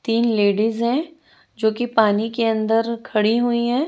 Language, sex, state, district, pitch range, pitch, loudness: Hindi, female, Chhattisgarh, Raipur, 220-240 Hz, 230 Hz, -20 LUFS